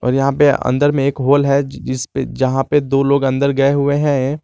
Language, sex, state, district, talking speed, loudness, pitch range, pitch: Hindi, male, Jharkhand, Garhwa, 215 wpm, -15 LUFS, 135-140 Hz, 140 Hz